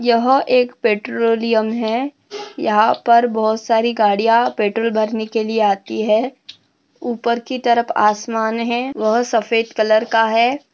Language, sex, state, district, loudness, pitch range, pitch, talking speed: Hindi, female, Maharashtra, Nagpur, -17 LUFS, 220-240 Hz, 230 Hz, 140 wpm